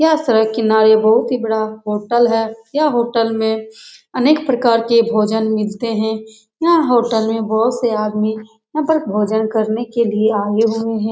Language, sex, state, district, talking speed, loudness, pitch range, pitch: Hindi, female, Bihar, Saran, 185 wpm, -16 LUFS, 220-235 Hz, 225 Hz